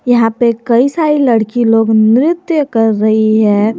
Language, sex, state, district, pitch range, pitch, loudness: Hindi, female, Jharkhand, Garhwa, 220-255 Hz, 230 Hz, -11 LUFS